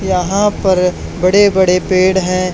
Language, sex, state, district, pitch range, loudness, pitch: Hindi, male, Haryana, Charkhi Dadri, 185-190 Hz, -13 LUFS, 185 Hz